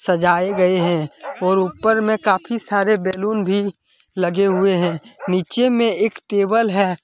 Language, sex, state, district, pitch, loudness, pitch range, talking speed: Hindi, male, Jharkhand, Deoghar, 195 Hz, -18 LUFS, 180-215 Hz, 155 wpm